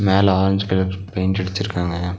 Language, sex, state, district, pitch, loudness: Tamil, male, Tamil Nadu, Nilgiris, 95 Hz, -20 LUFS